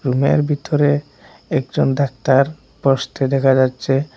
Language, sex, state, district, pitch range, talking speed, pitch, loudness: Bengali, male, Assam, Hailakandi, 135-145 Hz, 100 wpm, 135 Hz, -17 LUFS